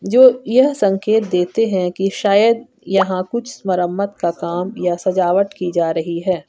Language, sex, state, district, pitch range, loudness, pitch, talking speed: Hindi, female, Jharkhand, Garhwa, 180-220 Hz, -17 LUFS, 195 Hz, 165 wpm